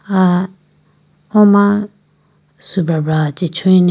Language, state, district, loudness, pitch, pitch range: Idu Mishmi, Arunachal Pradesh, Lower Dibang Valley, -14 LUFS, 180 Hz, 160-195 Hz